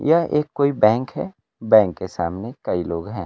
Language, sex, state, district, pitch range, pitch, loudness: Hindi, male, Bihar, Kaimur, 95-145 Hz, 110 Hz, -20 LUFS